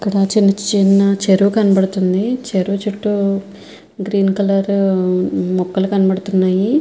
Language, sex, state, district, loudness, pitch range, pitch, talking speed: Telugu, female, Andhra Pradesh, Visakhapatnam, -15 LUFS, 190-200 Hz, 195 Hz, 115 wpm